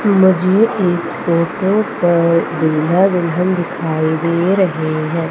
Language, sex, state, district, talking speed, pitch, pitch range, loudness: Hindi, female, Madhya Pradesh, Umaria, 115 wpm, 175 Hz, 165-190 Hz, -15 LUFS